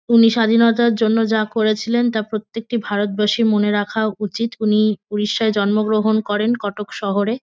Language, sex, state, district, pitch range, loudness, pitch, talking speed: Bengali, female, West Bengal, North 24 Parganas, 210-230 Hz, -18 LUFS, 215 Hz, 135 wpm